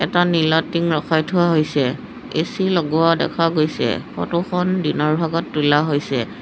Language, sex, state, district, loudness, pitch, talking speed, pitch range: Assamese, female, Assam, Sonitpur, -19 LUFS, 165 Hz, 140 wpm, 155-175 Hz